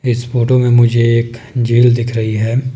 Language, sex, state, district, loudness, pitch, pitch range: Hindi, male, Himachal Pradesh, Shimla, -13 LUFS, 120 Hz, 115-125 Hz